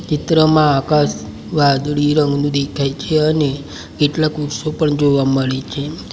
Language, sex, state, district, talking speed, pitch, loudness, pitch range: Gujarati, male, Gujarat, Valsad, 125 wpm, 145 Hz, -16 LUFS, 140-155 Hz